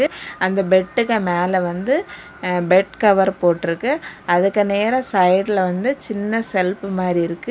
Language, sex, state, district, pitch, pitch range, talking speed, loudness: Tamil, female, Tamil Nadu, Kanyakumari, 190 Hz, 180-220 Hz, 120 wpm, -18 LUFS